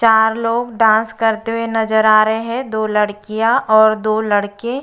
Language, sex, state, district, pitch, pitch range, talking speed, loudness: Hindi, female, Uttar Pradesh, Budaun, 220 Hz, 215-230 Hz, 185 wpm, -15 LUFS